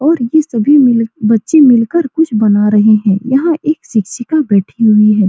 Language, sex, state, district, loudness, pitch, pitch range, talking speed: Hindi, female, Bihar, Supaul, -11 LUFS, 230 Hz, 215-300 Hz, 180 wpm